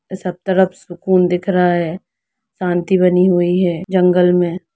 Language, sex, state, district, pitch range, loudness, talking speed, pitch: Hindi, female, Jharkhand, Jamtara, 175-185 Hz, -15 LUFS, 150 wpm, 180 Hz